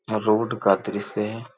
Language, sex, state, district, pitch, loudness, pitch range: Hindi, male, Uttar Pradesh, Gorakhpur, 110 Hz, -23 LUFS, 105-115 Hz